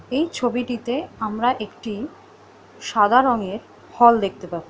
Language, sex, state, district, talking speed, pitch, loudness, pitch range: Bengali, female, West Bengal, Jhargram, 115 wpm, 240 Hz, -21 LUFS, 215-255 Hz